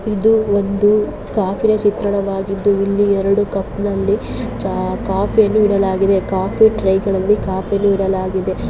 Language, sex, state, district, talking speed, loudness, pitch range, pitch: Kannada, female, Karnataka, Bellary, 125 wpm, -16 LUFS, 195-205 Hz, 200 Hz